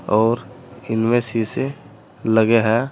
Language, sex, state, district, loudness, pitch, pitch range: Hindi, male, Uttar Pradesh, Saharanpur, -19 LUFS, 115 Hz, 110-125 Hz